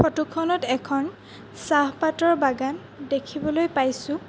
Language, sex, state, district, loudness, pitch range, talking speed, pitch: Assamese, female, Assam, Sonitpur, -24 LUFS, 275-320 Hz, 100 wpm, 295 Hz